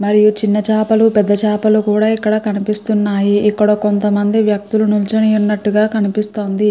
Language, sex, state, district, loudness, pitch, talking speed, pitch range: Telugu, female, Andhra Pradesh, Srikakulam, -14 LUFS, 210 Hz, 135 wpm, 210-215 Hz